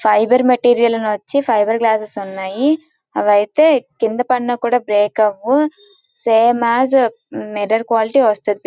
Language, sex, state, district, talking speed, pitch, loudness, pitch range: Telugu, female, Andhra Pradesh, Srikakulam, 125 wpm, 235 Hz, -15 LUFS, 215-255 Hz